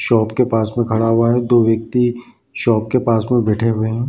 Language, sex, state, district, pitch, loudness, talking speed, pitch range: Hindi, male, Bihar, Bhagalpur, 115 Hz, -16 LUFS, 235 wpm, 110-120 Hz